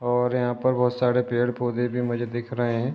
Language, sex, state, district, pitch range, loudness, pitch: Hindi, male, Uttar Pradesh, Ghazipur, 120-125 Hz, -24 LUFS, 120 Hz